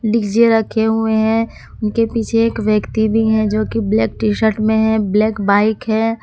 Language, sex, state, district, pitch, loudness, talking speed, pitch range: Hindi, female, Jharkhand, Palamu, 220 Hz, -16 LUFS, 195 wpm, 215-225 Hz